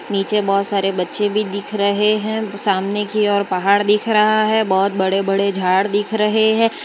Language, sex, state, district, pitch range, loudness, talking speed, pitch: Hindi, female, Gujarat, Valsad, 195-215 Hz, -17 LUFS, 190 wpm, 205 Hz